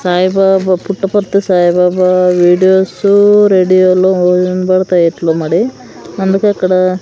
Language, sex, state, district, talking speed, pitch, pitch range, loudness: Telugu, female, Andhra Pradesh, Sri Satya Sai, 85 wpm, 185 Hz, 180-195 Hz, -10 LUFS